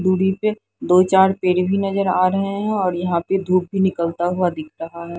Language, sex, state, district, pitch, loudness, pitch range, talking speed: Hindi, female, Haryana, Jhajjar, 185 Hz, -19 LUFS, 175-190 Hz, 245 wpm